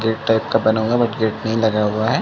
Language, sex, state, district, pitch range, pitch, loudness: Hindi, male, Chhattisgarh, Rajnandgaon, 110-115 Hz, 110 Hz, -18 LUFS